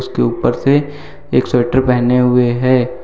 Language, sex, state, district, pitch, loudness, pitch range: Hindi, male, Uttar Pradesh, Lucknow, 125 Hz, -14 LUFS, 125-130 Hz